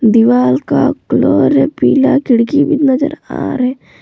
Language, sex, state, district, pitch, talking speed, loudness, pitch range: Hindi, female, Jharkhand, Palamu, 265 Hz, 150 wpm, -12 LUFS, 230-285 Hz